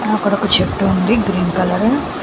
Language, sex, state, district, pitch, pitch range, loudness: Telugu, female, Andhra Pradesh, Srikakulam, 205 Hz, 185-215 Hz, -15 LUFS